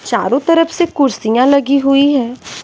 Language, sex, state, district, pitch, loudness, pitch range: Hindi, female, Bihar, West Champaran, 275 Hz, -13 LUFS, 260-285 Hz